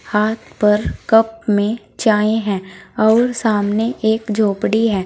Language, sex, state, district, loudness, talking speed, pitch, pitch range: Hindi, female, Uttar Pradesh, Saharanpur, -17 LUFS, 130 wpm, 220 Hz, 210-225 Hz